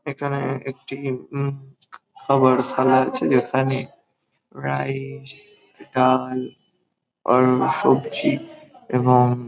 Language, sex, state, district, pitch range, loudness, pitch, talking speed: Bengali, male, West Bengal, Kolkata, 130-140 Hz, -21 LUFS, 135 Hz, 80 wpm